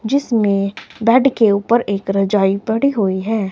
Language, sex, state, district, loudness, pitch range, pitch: Hindi, male, Himachal Pradesh, Shimla, -16 LUFS, 195-230 Hz, 210 Hz